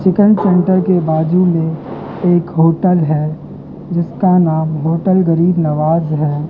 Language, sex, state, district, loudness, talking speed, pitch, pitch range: Hindi, male, Madhya Pradesh, Katni, -14 LUFS, 130 wpm, 170 Hz, 160-185 Hz